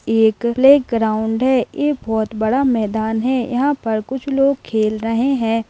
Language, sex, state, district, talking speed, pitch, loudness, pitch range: Hindi, female, Rajasthan, Nagaur, 170 wpm, 235 Hz, -17 LUFS, 220-265 Hz